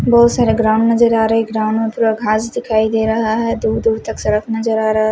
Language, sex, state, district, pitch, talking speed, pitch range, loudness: Hindi, male, Punjab, Fazilka, 225 Hz, 255 wpm, 220-230 Hz, -15 LUFS